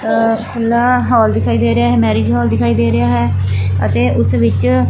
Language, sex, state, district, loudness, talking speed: Punjabi, female, Punjab, Fazilka, -13 LUFS, 195 wpm